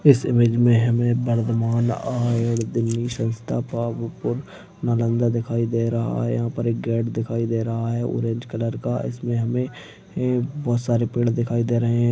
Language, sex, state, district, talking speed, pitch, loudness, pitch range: Hindi, male, Bihar, Purnia, 170 wpm, 115 Hz, -23 LUFS, 115-120 Hz